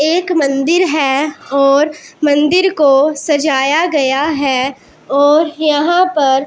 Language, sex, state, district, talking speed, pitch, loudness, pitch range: Hindi, female, Punjab, Pathankot, 120 wpm, 295 Hz, -13 LUFS, 275-315 Hz